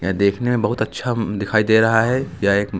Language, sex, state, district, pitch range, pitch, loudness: Hindi, male, Uttar Pradesh, Lucknow, 100-120 Hz, 110 Hz, -18 LUFS